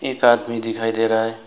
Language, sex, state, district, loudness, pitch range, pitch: Hindi, male, West Bengal, Alipurduar, -19 LUFS, 115-120 Hz, 115 Hz